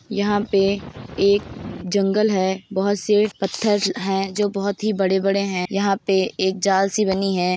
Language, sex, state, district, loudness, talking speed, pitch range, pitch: Hindi, female, Uttar Pradesh, Hamirpur, -20 LUFS, 165 wpm, 190-205 Hz, 195 Hz